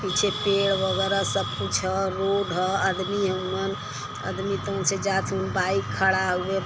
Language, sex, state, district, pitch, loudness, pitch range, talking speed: Bhojpuri, female, Uttar Pradesh, Varanasi, 190 Hz, -25 LUFS, 185-195 Hz, 160 wpm